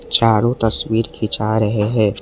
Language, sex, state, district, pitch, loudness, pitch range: Hindi, male, Assam, Kamrup Metropolitan, 110 Hz, -17 LUFS, 110-115 Hz